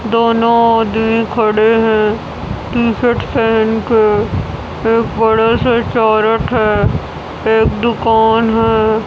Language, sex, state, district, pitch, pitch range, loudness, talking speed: Hindi, female, Haryana, Rohtak, 225 Hz, 220-230 Hz, -13 LUFS, 100 wpm